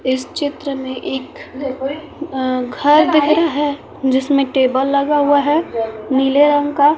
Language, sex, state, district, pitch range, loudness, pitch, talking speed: Hindi, female, Bihar, West Champaran, 265-295 Hz, -16 LUFS, 280 Hz, 135 wpm